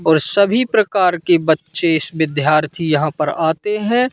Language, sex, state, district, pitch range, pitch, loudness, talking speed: Hindi, male, Madhya Pradesh, Katni, 155-200 Hz, 165 Hz, -16 LUFS, 160 wpm